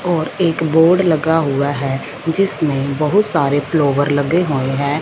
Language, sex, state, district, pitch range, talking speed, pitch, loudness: Hindi, female, Punjab, Fazilka, 140-170 Hz, 155 wpm, 155 Hz, -16 LUFS